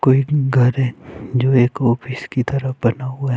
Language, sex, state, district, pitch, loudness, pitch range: Hindi, male, Chhattisgarh, Raipur, 130 Hz, -18 LUFS, 125-135 Hz